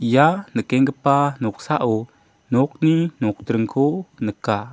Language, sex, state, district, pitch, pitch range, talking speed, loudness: Garo, male, Meghalaya, South Garo Hills, 130 Hz, 110-145 Hz, 75 wpm, -20 LUFS